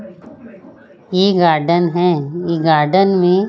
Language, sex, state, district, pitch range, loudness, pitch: Hindi, female, Chhattisgarh, Raipur, 170-195 Hz, -14 LUFS, 180 Hz